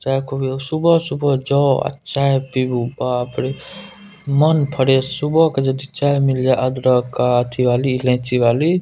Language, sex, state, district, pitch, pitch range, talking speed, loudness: Maithili, male, Bihar, Purnia, 135 Hz, 130-145 Hz, 165 wpm, -17 LUFS